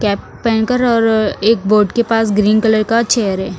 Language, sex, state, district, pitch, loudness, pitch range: Hindi, female, Punjab, Fazilka, 220 Hz, -14 LUFS, 210-230 Hz